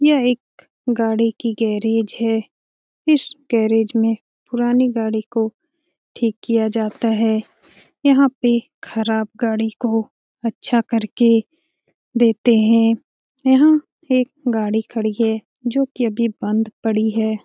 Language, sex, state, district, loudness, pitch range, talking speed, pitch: Hindi, female, Bihar, Jamui, -19 LUFS, 220-255 Hz, 130 wpm, 230 Hz